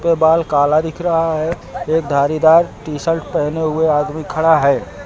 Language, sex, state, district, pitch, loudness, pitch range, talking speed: Hindi, male, Uttar Pradesh, Lucknow, 160 Hz, -16 LUFS, 150-165 Hz, 180 wpm